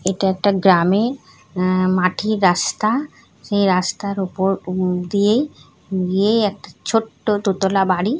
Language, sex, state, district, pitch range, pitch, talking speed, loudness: Bengali, female, West Bengal, North 24 Parganas, 185-210 Hz, 195 Hz, 110 wpm, -18 LUFS